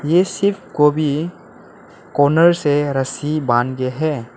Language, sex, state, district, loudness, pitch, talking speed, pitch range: Hindi, male, Arunachal Pradesh, Lower Dibang Valley, -17 LUFS, 150 Hz, 125 wpm, 135-165 Hz